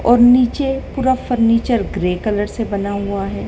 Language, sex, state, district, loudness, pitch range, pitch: Hindi, female, Madhya Pradesh, Dhar, -17 LUFS, 200-250 Hz, 230 Hz